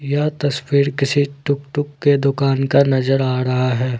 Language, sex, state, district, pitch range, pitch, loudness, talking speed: Hindi, male, Jharkhand, Ranchi, 135-145 Hz, 140 Hz, -18 LUFS, 165 wpm